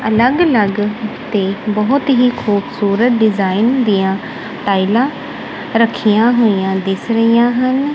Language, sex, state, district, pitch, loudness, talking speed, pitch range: Punjabi, female, Punjab, Kapurthala, 225 Hz, -14 LUFS, 105 wpm, 205-245 Hz